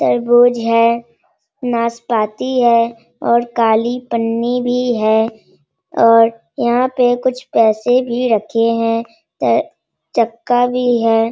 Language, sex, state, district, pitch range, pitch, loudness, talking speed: Hindi, female, Bihar, Sitamarhi, 230-245 Hz, 235 Hz, -15 LUFS, 115 wpm